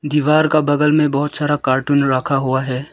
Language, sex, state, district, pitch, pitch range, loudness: Hindi, male, Arunachal Pradesh, Lower Dibang Valley, 145 Hz, 135-150 Hz, -16 LUFS